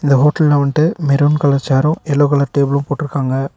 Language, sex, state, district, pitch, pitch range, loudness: Tamil, male, Tamil Nadu, Nilgiris, 145 Hz, 140-150 Hz, -14 LUFS